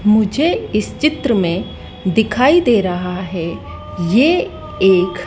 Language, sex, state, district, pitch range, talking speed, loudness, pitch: Hindi, female, Madhya Pradesh, Dhar, 180-240 Hz, 115 wpm, -16 LUFS, 195 Hz